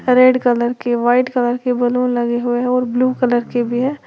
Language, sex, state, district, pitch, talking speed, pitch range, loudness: Hindi, female, Uttar Pradesh, Lalitpur, 245 Hz, 220 wpm, 240-250 Hz, -16 LUFS